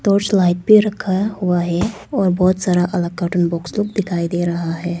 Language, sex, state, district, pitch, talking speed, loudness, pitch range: Hindi, female, Arunachal Pradesh, Papum Pare, 180 Hz, 205 wpm, -17 LUFS, 175-200 Hz